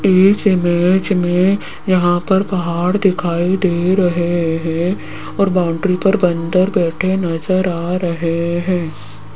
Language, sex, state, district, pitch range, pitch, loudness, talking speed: Hindi, female, Rajasthan, Jaipur, 170-185 Hz, 180 Hz, -16 LUFS, 115 wpm